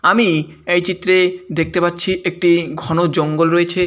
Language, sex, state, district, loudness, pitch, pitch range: Bengali, male, West Bengal, Malda, -16 LUFS, 175 Hz, 165-180 Hz